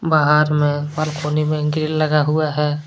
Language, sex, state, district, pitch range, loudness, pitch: Hindi, male, Jharkhand, Deoghar, 150-155 Hz, -18 LUFS, 150 Hz